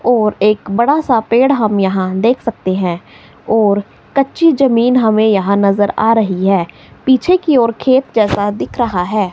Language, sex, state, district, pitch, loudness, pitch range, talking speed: Hindi, female, Himachal Pradesh, Shimla, 220 Hz, -13 LUFS, 200-250 Hz, 165 wpm